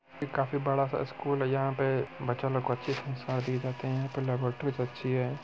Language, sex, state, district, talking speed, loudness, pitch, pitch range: Hindi, male, Bihar, Muzaffarpur, 230 wpm, -32 LUFS, 135 Hz, 125-135 Hz